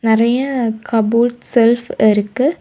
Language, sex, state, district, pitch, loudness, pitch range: Tamil, female, Tamil Nadu, Kanyakumari, 235 Hz, -15 LUFS, 225-245 Hz